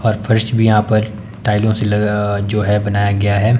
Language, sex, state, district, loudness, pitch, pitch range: Hindi, male, Himachal Pradesh, Shimla, -15 LUFS, 105 Hz, 105-110 Hz